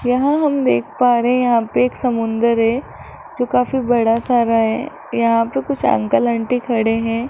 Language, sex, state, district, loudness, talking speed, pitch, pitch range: Hindi, female, Rajasthan, Jaipur, -17 LUFS, 190 wpm, 240 Hz, 230-250 Hz